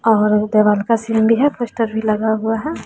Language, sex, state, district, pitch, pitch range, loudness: Hindi, female, Bihar, West Champaran, 220 Hz, 215-230 Hz, -16 LUFS